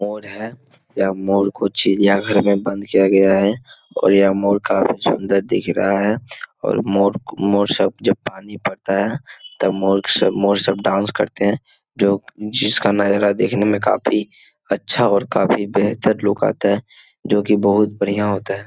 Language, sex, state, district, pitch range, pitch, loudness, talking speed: Hindi, male, Bihar, Jamui, 100-105 Hz, 100 Hz, -17 LUFS, 175 wpm